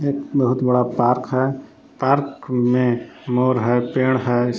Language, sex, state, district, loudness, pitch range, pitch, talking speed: Hindi, male, Jharkhand, Palamu, -19 LUFS, 125-130 Hz, 125 Hz, 145 wpm